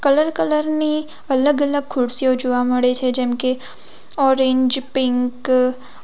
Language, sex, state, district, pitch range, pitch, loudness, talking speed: Gujarati, female, Gujarat, Valsad, 250-285 Hz, 260 Hz, -18 LUFS, 130 wpm